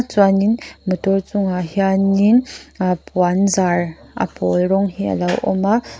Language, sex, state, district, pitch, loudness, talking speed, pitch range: Mizo, female, Mizoram, Aizawl, 195 Hz, -18 LUFS, 150 wpm, 180-200 Hz